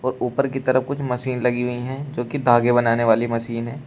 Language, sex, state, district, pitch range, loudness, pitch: Hindi, male, Uttar Pradesh, Shamli, 120-135 Hz, -21 LUFS, 125 Hz